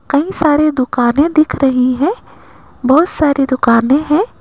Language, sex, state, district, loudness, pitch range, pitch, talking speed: Hindi, female, Rajasthan, Jaipur, -13 LUFS, 260-310 Hz, 285 Hz, 135 wpm